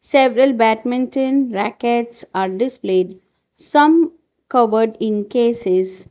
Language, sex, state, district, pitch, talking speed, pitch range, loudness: English, female, Gujarat, Valsad, 240 Hz, 90 wpm, 205-270 Hz, -17 LUFS